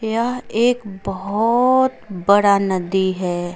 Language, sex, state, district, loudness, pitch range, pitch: Hindi, female, Uttar Pradesh, Lucknow, -18 LUFS, 190-235 Hz, 200 Hz